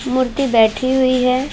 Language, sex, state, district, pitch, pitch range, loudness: Hindi, female, Uttar Pradesh, Varanasi, 255 Hz, 250-265 Hz, -16 LUFS